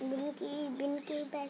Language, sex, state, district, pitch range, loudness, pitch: Hindi, female, Uttar Pradesh, Hamirpur, 280-295 Hz, -38 LUFS, 290 Hz